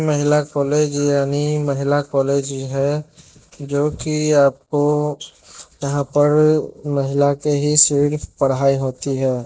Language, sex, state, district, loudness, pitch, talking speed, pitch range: Hindi, male, Bihar, Katihar, -18 LUFS, 145 Hz, 120 wpm, 140-150 Hz